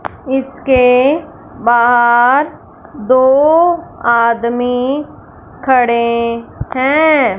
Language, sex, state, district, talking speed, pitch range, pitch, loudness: Hindi, female, Punjab, Fazilka, 50 wpm, 235-275 Hz, 255 Hz, -12 LUFS